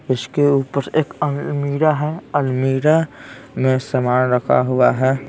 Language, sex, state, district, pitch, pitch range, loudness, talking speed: Hindi, male, Bihar, Patna, 140 Hz, 130-150 Hz, -18 LUFS, 125 wpm